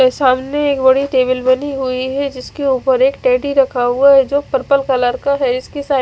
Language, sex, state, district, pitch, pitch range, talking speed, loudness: Hindi, female, Odisha, Khordha, 265 Hz, 255-280 Hz, 230 wpm, -15 LUFS